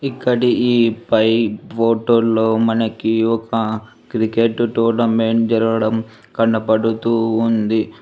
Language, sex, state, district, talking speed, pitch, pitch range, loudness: Telugu, female, Telangana, Hyderabad, 80 wpm, 115 Hz, 110-115 Hz, -17 LUFS